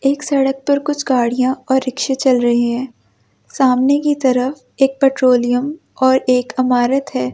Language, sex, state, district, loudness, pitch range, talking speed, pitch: Hindi, female, Delhi, New Delhi, -16 LUFS, 250-275 Hz, 155 wpm, 260 Hz